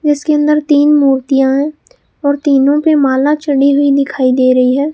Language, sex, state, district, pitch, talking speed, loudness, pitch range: Hindi, female, Rajasthan, Bikaner, 285 Hz, 180 wpm, -11 LUFS, 270-295 Hz